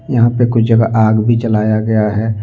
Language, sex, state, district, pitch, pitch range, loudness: Hindi, male, Jharkhand, Deoghar, 110 Hz, 110-115 Hz, -13 LUFS